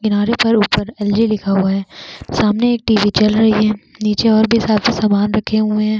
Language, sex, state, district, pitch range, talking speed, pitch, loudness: Hindi, female, Chhattisgarh, Bastar, 210-220 Hz, 210 wpm, 215 Hz, -15 LUFS